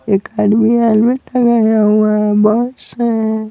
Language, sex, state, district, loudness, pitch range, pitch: Hindi, male, Bihar, Patna, -13 LUFS, 215-235 Hz, 220 Hz